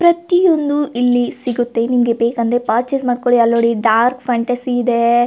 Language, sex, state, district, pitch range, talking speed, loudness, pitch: Kannada, female, Karnataka, Gulbarga, 235-250 Hz, 135 wpm, -15 LUFS, 245 Hz